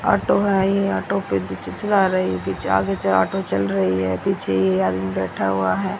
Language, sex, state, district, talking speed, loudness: Hindi, female, Haryana, Rohtak, 220 wpm, -20 LUFS